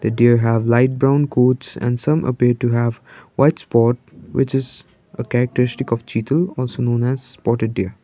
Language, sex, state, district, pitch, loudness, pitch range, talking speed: English, male, Sikkim, Gangtok, 125 Hz, -18 LUFS, 120-130 Hz, 165 wpm